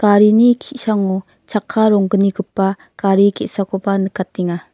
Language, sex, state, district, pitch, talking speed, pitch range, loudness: Garo, female, Meghalaya, North Garo Hills, 200 Hz, 90 wpm, 195-210 Hz, -16 LUFS